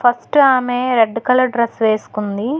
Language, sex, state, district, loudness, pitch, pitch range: Telugu, female, Telangana, Hyderabad, -16 LUFS, 245 Hz, 225-255 Hz